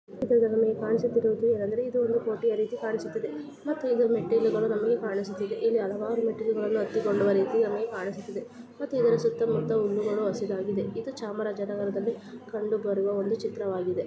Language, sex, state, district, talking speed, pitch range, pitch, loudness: Kannada, female, Karnataka, Dakshina Kannada, 140 wpm, 205-230 Hz, 220 Hz, -28 LUFS